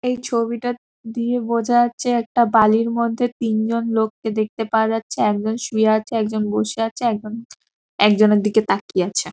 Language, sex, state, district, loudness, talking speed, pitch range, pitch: Bengali, female, West Bengal, Paschim Medinipur, -19 LUFS, 165 wpm, 215-235 Hz, 225 Hz